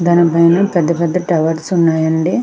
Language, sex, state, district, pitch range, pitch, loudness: Telugu, female, Andhra Pradesh, Krishna, 165-175 Hz, 170 Hz, -13 LUFS